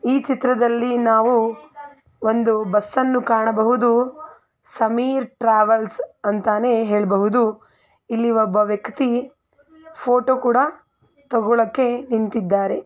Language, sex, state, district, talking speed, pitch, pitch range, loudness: Kannada, female, Karnataka, Mysore, 80 wpm, 235 Hz, 220-255 Hz, -19 LUFS